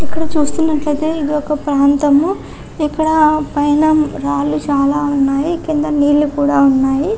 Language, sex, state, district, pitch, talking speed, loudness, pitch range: Telugu, female, Andhra Pradesh, Chittoor, 295 Hz, 115 wpm, -14 LUFS, 285-310 Hz